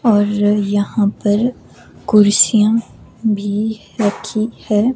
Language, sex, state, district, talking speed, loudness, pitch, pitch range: Hindi, female, Himachal Pradesh, Shimla, 85 wpm, -16 LUFS, 210 Hz, 205-220 Hz